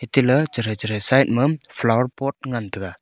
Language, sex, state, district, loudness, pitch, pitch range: Wancho, male, Arunachal Pradesh, Longding, -20 LUFS, 125 Hz, 110-135 Hz